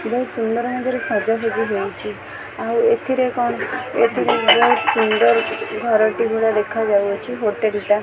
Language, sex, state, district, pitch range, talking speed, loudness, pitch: Odia, female, Odisha, Khordha, 210-240 Hz, 125 wpm, -18 LUFS, 225 Hz